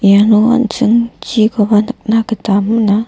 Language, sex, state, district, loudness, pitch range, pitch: Garo, female, Meghalaya, West Garo Hills, -12 LUFS, 210-230 Hz, 225 Hz